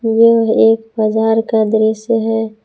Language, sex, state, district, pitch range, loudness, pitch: Hindi, female, Jharkhand, Palamu, 220-225 Hz, -13 LUFS, 225 Hz